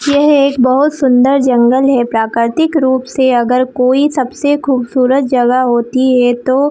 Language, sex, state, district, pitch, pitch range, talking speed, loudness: Hindi, female, Chhattisgarh, Bilaspur, 260 Hz, 250-275 Hz, 150 wpm, -11 LUFS